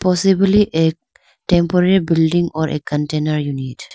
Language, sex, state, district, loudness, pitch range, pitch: English, female, Arunachal Pradesh, Lower Dibang Valley, -16 LUFS, 150-180 Hz, 165 Hz